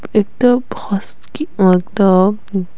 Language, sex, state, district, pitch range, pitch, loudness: Bengali, female, Tripura, West Tripura, 190-225 Hz, 200 Hz, -15 LUFS